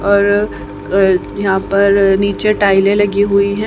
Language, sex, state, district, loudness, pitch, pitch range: Hindi, female, Haryana, Charkhi Dadri, -13 LUFS, 200 Hz, 195-200 Hz